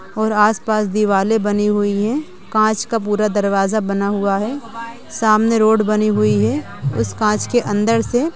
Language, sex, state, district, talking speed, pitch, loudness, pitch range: Hindi, female, Bihar, Samastipur, 170 wpm, 215 Hz, -17 LUFS, 200-220 Hz